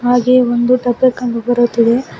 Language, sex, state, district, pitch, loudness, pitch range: Kannada, female, Karnataka, Bangalore, 245 Hz, -13 LUFS, 240-250 Hz